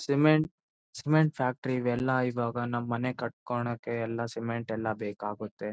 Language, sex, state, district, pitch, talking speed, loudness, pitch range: Kannada, male, Karnataka, Bellary, 120 Hz, 125 wpm, -30 LUFS, 115-130 Hz